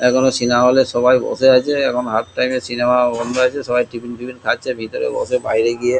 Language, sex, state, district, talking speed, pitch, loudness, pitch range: Bengali, male, West Bengal, Kolkata, 220 wpm, 125 Hz, -17 LUFS, 120-130 Hz